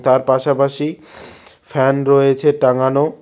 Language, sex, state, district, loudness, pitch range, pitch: Bengali, male, West Bengal, Cooch Behar, -15 LUFS, 130-145 Hz, 140 Hz